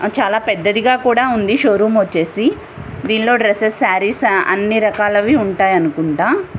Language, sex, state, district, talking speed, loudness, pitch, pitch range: Telugu, female, Andhra Pradesh, Visakhapatnam, 155 wpm, -14 LUFS, 210 Hz, 200-240 Hz